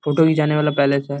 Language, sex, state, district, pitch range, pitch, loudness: Hindi, male, Bihar, East Champaran, 140-150 Hz, 150 Hz, -17 LUFS